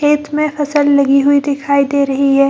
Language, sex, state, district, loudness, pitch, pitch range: Hindi, female, Bihar, Gaya, -13 LUFS, 285 Hz, 275-295 Hz